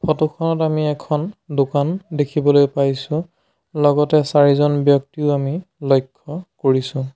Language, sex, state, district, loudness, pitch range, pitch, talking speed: Assamese, male, Assam, Sonitpur, -18 LUFS, 140-155 Hz, 145 Hz, 110 wpm